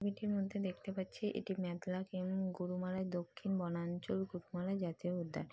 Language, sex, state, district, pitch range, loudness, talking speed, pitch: Bengali, female, West Bengal, Jalpaiguri, 180-195 Hz, -41 LUFS, 140 wpm, 185 Hz